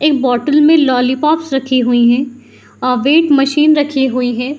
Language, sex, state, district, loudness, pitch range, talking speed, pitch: Hindi, female, Bihar, Saharsa, -12 LUFS, 250-295 Hz, 170 wpm, 270 Hz